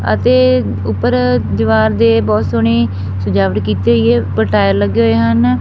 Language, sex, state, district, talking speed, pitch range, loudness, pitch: Punjabi, female, Punjab, Fazilka, 160 wpm, 100-115 Hz, -13 LUFS, 110 Hz